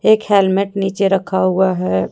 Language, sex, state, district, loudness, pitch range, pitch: Hindi, female, Jharkhand, Deoghar, -15 LUFS, 185-200 Hz, 195 Hz